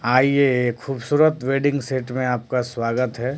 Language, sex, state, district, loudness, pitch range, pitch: Hindi, male, Bihar, Katihar, -21 LUFS, 125-140 Hz, 130 Hz